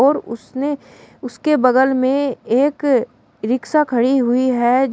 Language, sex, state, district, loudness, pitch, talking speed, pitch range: Hindi, female, Uttar Pradesh, Shamli, -17 LUFS, 260 Hz, 120 wpm, 245-275 Hz